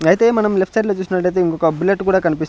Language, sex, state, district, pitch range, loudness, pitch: Telugu, male, Andhra Pradesh, Sri Satya Sai, 170-200 Hz, -16 LUFS, 190 Hz